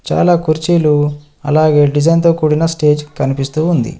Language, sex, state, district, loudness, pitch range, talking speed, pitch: Telugu, male, Telangana, Adilabad, -13 LUFS, 150-165 Hz, 120 wpm, 155 Hz